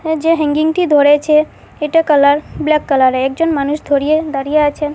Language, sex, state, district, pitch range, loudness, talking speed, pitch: Bengali, female, Assam, Hailakandi, 285-315 Hz, -13 LUFS, 160 wpm, 300 Hz